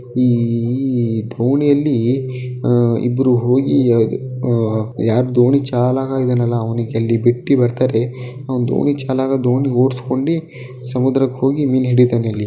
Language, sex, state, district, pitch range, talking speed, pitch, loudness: Kannada, male, Karnataka, Dakshina Kannada, 120-130 Hz, 110 wpm, 125 Hz, -16 LUFS